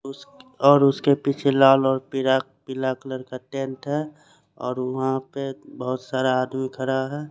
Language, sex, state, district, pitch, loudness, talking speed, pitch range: Hindi, male, Chandigarh, Chandigarh, 135 Hz, -23 LUFS, 170 wpm, 130-140 Hz